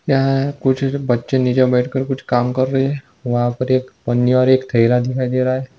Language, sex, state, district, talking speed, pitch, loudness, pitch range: Hindi, male, Chhattisgarh, Jashpur, 225 wpm, 130 Hz, -17 LUFS, 125-135 Hz